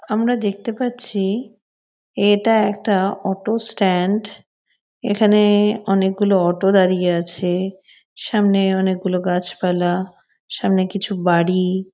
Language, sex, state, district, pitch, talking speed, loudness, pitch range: Bengali, female, West Bengal, North 24 Parganas, 195 Hz, 95 wpm, -18 LUFS, 185-210 Hz